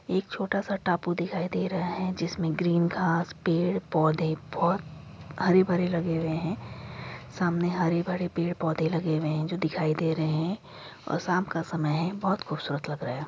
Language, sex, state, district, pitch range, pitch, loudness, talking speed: Hindi, female, Uttar Pradesh, Jyotiba Phule Nagar, 160-180 Hz, 170 Hz, -28 LUFS, 190 wpm